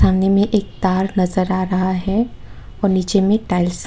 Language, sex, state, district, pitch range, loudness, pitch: Hindi, female, Tripura, West Tripura, 185-200 Hz, -18 LUFS, 190 Hz